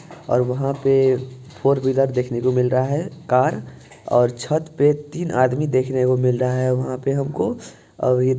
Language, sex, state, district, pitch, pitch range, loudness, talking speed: Hindi, male, Bihar, Purnia, 130 Hz, 125-140 Hz, -20 LUFS, 180 wpm